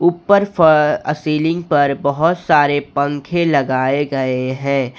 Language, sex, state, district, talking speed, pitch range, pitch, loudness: Hindi, male, Jharkhand, Ranchi, 120 wpm, 140-165 Hz, 145 Hz, -16 LUFS